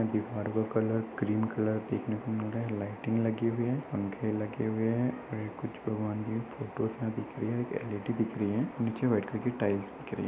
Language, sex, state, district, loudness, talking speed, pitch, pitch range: Hindi, male, Uttar Pradesh, Jyotiba Phule Nagar, -33 LUFS, 220 wpm, 110 Hz, 105-115 Hz